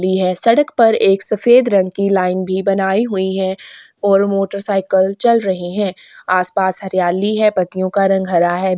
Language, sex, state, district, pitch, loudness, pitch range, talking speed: Hindi, female, Chhattisgarh, Kabirdham, 195 Hz, -15 LUFS, 185-200 Hz, 190 wpm